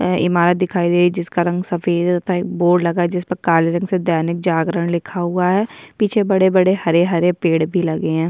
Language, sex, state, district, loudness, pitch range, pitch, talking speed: Hindi, female, Chhattisgarh, Sukma, -17 LUFS, 170-180 Hz, 175 Hz, 245 wpm